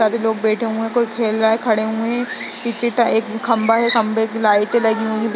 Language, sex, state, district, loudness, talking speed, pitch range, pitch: Hindi, female, Uttar Pradesh, Etah, -18 LUFS, 255 wpm, 220-230 Hz, 225 Hz